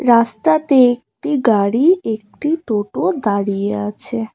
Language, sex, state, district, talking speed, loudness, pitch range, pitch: Bengali, female, West Bengal, Cooch Behar, 95 wpm, -17 LUFS, 210-295 Hz, 235 Hz